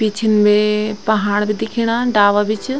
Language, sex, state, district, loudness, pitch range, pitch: Garhwali, female, Uttarakhand, Tehri Garhwal, -16 LUFS, 210-220 Hz, 215 Hz